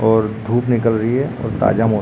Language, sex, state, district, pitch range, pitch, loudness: Hindi, male, Uttarakhand, Uttarkashi, 110-120 Hz, 115 Hz, -17 LUFS